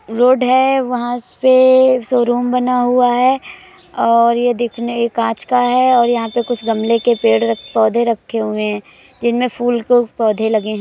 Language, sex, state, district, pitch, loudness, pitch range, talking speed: Hindi, female, Uttar Pradesh, Budaun, 240 Hz, -15 LUFS, 225-250 Hz, 185 wpm